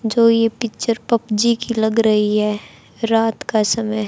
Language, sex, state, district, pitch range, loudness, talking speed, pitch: Hindi, male, Haryana, Jhajjar, 215-230 Hz, -18 LUFS, 160 wpm, 225 Hz